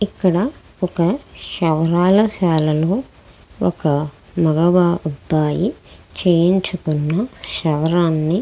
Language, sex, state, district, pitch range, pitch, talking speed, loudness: Telugu, female, Andhra Pradesh, Krishna, 155-185 Hz, 170 Hz, 70 wpm, -18 LUFS